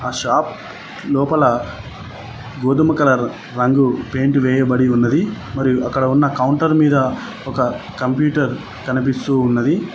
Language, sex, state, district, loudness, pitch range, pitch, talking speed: Telugu, male, Telangana, Mahabubabad, -17 LUFS, 125-140 Hz, 130 Hz, 90 wpm